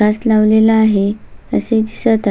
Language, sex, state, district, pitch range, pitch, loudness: Marathi, female, Maharashtra, Sindhudurg, 210-220 Hz, 220 Hz, -14 LUFS